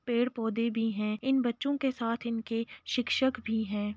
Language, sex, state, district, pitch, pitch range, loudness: Hindi, female, Uttar Pradesh, Jalaun, 230 Hz, 225-250 Hz, -31 LUFS